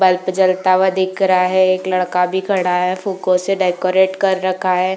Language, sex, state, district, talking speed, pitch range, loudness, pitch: Hindi, female, Uttar Pradesh, Jalaun, 220 wpm, 185-190 Hz, -16 LUFS, 185 Hz